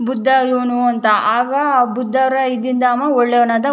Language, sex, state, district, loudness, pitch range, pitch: Kannada, female, Karnataka, Chamarajanagar, -15 LUFS, 240-260 Hz, 250 Hz